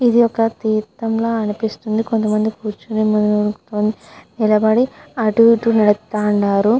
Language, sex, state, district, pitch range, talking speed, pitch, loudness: Telugu, female, Andhra Pradesh, Guntur, 210-225 Hz, 140 wpm, 215 Hz, -17 LUFS